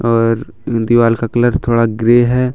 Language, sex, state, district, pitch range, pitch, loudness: Hindi, male, Jharkhand, Deoghar, 115-120 Hz, 115 Hz, -14 LUFS